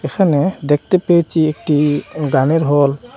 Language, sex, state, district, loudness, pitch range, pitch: Bengali, male, Assam, Hailakandi, -15 LUFS, 145-170 Hz, 155 Hz